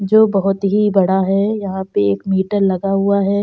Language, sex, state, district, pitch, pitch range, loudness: Hindi, female, Uttar Pradesh, Jalaun, 195 Hz, 190-200 Hz, -16 LUFS